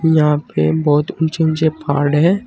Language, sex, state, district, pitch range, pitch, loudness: Hindi, male, Uttar Pradesh, Saharanpur, 145-160 Hz, 155 Hz, -16 LUFS